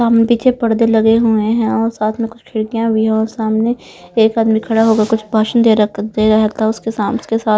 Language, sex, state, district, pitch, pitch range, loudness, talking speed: Hindi, male, Punjab, Pathankot, 225 Hz, 220-230 Hz, -14 LUFS, 230 wpm